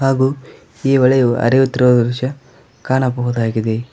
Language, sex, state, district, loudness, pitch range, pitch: Kannada, male, Karnataka, Koppal, -15 LUFS, 120-130 Hz, 125 Hz